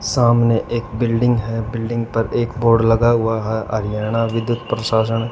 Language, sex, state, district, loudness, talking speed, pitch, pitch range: Hindi, male, Haryana, Charkhi Dadri, -18 LUFS, 170 wpm, 115 Hz, 110-120 Hz